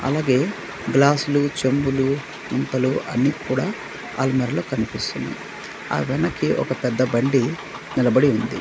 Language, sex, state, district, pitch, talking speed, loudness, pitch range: Telugu, male, Andhra Pradesh, Manyam, 135 Hz, 105 wpm, -21 LUFS, 130-140 Hz